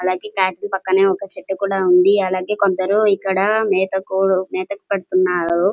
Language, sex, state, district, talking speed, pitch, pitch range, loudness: Telugu, female, Andhra Pradesh, Krishna, 155 wpm, 190 Hz, 185-200 Hz, -18 LUFS